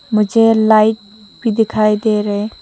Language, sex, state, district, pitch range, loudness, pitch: Hindi, female, Mizoram, Aizawl, 210-225 Hz, -14 LUFS, 215 Hz